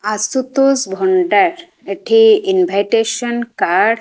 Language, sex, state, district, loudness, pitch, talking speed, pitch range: Odia, female, Odisha, Khordha, -14 LUFS, 240 Hz, 90 wpm, 210-350 Hz